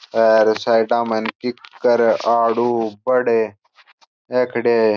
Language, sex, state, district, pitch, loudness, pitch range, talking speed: Marwari, male, Rajasthan, Churu, 115 Hz, -18 LUFS, 110-120 Hz, 110 wpm